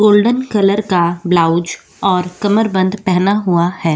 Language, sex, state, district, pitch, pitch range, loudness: Hindi, female, Goa, North and South Goa, 185 Hz, 175-205 Hz, -14 LUFS